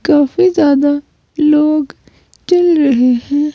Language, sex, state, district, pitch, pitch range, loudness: Hindi, female, Himachal Pradesh, Shimla, 300 Hz, 285-315 Hz, -12 LUFS